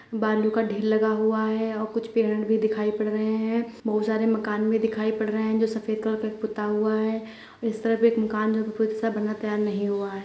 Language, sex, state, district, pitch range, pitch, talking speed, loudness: Hindi, male, Bihar, Purnia, 215-220 Hz, 220 Hz, 240 wpm, -25 LUFS